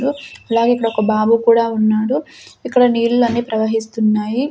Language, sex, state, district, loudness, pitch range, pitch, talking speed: Telugu, female, Andhra Pradesh, Sri Satya Sai, -16 LUFS, 220-245 Hz, 230 Hz, 135 wpm